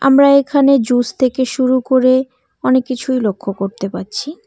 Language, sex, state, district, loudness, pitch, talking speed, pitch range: Bengali, female, West Bengal, Cooch Behar, -15 LUFS, 255 Hz, 150 wpm, 245-275 Hz